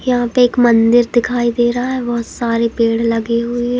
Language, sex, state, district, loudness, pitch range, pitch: Hindi, female, Madhya Pradesh, Katni, -15 LUFS, 230-245 Hz, 240 Hz